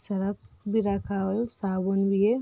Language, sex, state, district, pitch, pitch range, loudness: Hindi, female, Bihar, Darbhanga, 200 Hz, 195-215 Hz, -27 LUFS